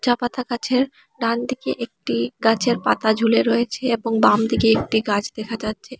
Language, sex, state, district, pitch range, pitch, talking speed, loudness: Bengali, female, Assam, Hailakandi, 220-245 Hz, 230 Hz, 150 wpm, -20 LUFS